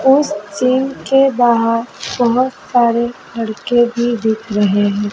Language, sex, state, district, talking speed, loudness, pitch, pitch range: Hindi, male, Madhya Pradesh, Dhar, 130 wpm, -15 LUFS, 235 Hz, 220-255 Hz